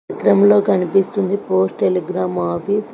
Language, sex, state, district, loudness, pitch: Telugu, female, Telangana, Hyderabad, -17 LUFS, 195 Hz